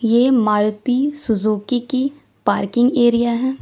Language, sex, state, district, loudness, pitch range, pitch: Hindi, female, Uttar Pradesh, Lalitpur, -18 LUFS, 215-260 Hz, 240 Hz